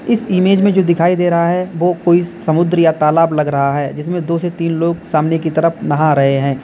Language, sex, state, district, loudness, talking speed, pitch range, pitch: Hindi, male, Uttar Pradesh, Lalitpur, -14 LUFS, 245 wpm, 155-175 Hz, 170 Hz